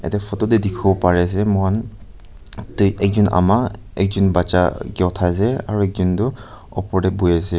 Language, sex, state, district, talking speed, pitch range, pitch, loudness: Nagamese, male, Nagaland, Kohima, 165 wpm, 90-105 Hz, 100 Hz, -18 LUFS